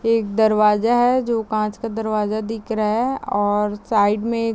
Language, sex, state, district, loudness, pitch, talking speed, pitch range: Hindi, female, Chhattisgarh, Raigarh, -20 LUFS, 220 Hz, 170 wpm, 210-230 Hz